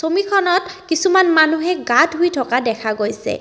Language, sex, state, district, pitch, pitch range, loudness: Assamese, female, Assam, Kamrup Metropolitan, 325 Hz, 255-365 Hz, -16 LUFS